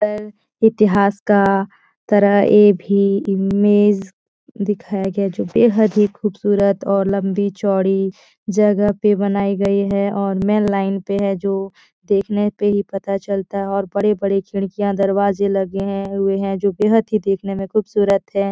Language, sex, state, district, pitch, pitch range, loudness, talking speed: Hindi, female, Bihar, Jahanabad, 200 Hz, 195-205 Hz, -17 LUFS, 155 wpm